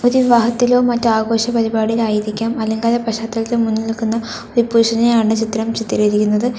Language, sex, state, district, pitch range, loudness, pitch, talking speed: Malayalam, female, Kerala, Kollam, 225-235 Hz, -16 LUFS, 225 Hz, 110 wpm